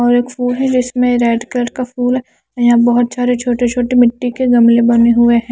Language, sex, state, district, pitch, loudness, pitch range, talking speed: Hindi, female, Chandigarh, Chandigarh, 245 Hz, -13 LUFS, 235-250 Hz, 185 wpm